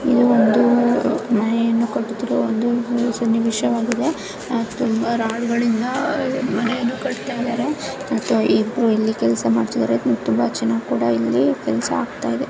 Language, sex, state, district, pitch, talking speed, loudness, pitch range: Kannada, male, Karnataka, Bijapur, 230 Hz, 130 wpm, -19 LUFS, 210-245 Hz